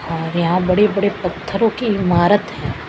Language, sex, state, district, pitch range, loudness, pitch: Hindi, female, Chhattisgarh, Raipur, 170-205 Hz, -17 LUFS, 185 Hz